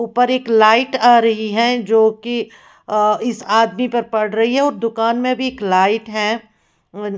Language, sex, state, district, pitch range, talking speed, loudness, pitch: Hindi, female, Odisha, Khordha, 215-240 Hz, 185 wpm, -16 LUFS, 225 Hz